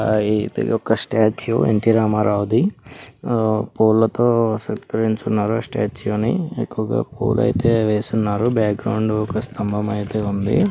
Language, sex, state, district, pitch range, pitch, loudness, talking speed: Telugu, male, Andhra Pradesh, Guntur, 105-115 Hz, 110 Hz, -19 LUFS, 110 wpm